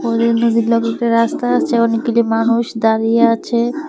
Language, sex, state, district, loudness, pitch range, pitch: Bengali, female, Tripura, West Tripura, -15 LUFS, 230-235 Hz, 230 Hz